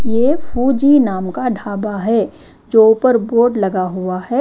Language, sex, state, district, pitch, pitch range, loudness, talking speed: Hindi, female, Himachal Pradesh, Shimla, 225 Hz, 200-250 Hz, -15 LUFS, 165 wpm